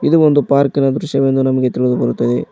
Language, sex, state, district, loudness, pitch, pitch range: Kannada, male, Karnataka, Koppal, -14 LUFS, 135 Hz, 125-140 Hz